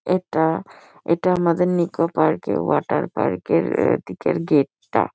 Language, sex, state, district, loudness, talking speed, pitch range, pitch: Bengali, female, West Bengal, Kolkata, -21 LUFS, 150 wpm, 160-180 Hz, 170 Hz